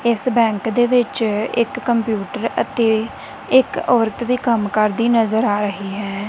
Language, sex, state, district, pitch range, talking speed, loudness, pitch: Punjabi, female, Punjab, Kapurthala, 210-240 Hz, 150 wpm, -18 LUFS, 230 Hz